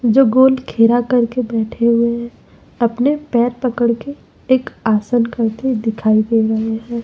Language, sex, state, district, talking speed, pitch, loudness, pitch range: Hindi, female, Madhya Pradesh, Umaria, 155 wpm, 235 Hz, -16 LUFS, 225-250 Hz